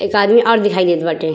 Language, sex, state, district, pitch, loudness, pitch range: Bhojpuri, female, Uttar Pradesh, Ghazipur, 200 Hz, -13 LUFS, 170-210 Hz